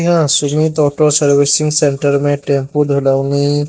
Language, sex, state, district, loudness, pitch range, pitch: Hindi, male, Bihar, Katihar, -13 LUFS, 140-150 Hz, 145 Hz